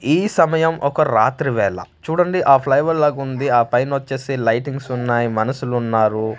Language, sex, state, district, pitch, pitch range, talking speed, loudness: Telugu, male, Andhra Pradesh, Manyam, 135 Hz, 120-150 Hz, 130 wpm, -18 LUFS